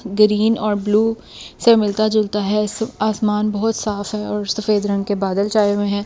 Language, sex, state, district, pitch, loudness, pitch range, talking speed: Hindi, female, Delhi, New Delhi, 210 Hz, -18 LUFS, 205-215 Hz, 190 wpm